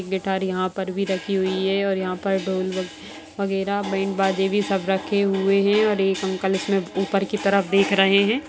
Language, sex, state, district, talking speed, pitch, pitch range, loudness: Hindi, female, Bihar, Saran, 205 wpm, 195 Hz, 190-200 Hz, -22 LUFS